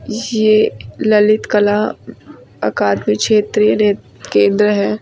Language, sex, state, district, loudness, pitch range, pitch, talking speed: Hindi, female, Uttar Pradesh, Lucknow, -14 LUFS, 205-215 Hz, 210 Hz, 85 wpm